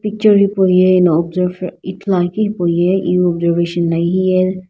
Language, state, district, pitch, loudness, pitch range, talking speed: Sumi, Nagaland, Dimapur, 185 Hz, -14 LUFS, 175-190 Hz, 130 wpm